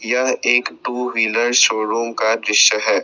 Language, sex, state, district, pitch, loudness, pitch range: Hindi, male, Assam, Sonitpur, 115 Hz, -16 LUFS, 110-125 Hz